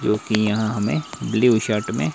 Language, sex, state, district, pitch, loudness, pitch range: Hindi, male, Himachal Pradesh, Shimla, 105 Hz, -21 LUFS, 105-110 Hz